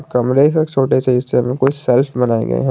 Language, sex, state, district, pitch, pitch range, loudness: Hindi, male, Jharkhand, Garhwa, 130 Hz, 125-135 Hz, -15 LUFS